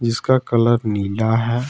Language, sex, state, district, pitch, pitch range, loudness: Hindi, male, Jharkhand, Ranchi, 115 Hz, 110-120 Hz, -18 LUFS